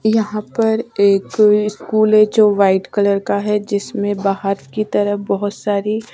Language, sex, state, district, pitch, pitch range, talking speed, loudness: Hindi, female, Bihar, West Champaran, 205 Hz, 200-215 Hz, 165 wpm, -16 LUFS